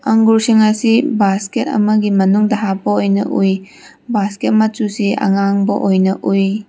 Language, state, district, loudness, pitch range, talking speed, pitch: Manipuri, Manipur, Imphal West, -14 LUFS, 195-220 Hz, 125 wpm, 205 Hz